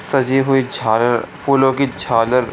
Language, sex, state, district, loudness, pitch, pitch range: Hindi, male, Bihar, Supaul, -16 LUFS, 130 Hz, 120-135 Hz